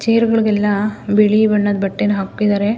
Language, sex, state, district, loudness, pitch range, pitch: Kannada, female, Karnataka, Mysore, -16 LUFS, 205-215 Hz, 210 Hz